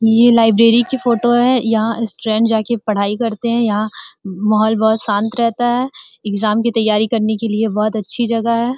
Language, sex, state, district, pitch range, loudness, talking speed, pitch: Hindi, female, Uttar Pradesh, Gorakhpur, 215-235 Hz, -15 LUFS, 185 wpm, 225 Hz